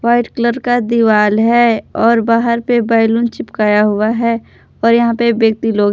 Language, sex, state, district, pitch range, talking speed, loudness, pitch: Hindi, female, Jharkhand, Palamu, 225-235 Hz, 170 wpm, -13 LUFS, 230 Hz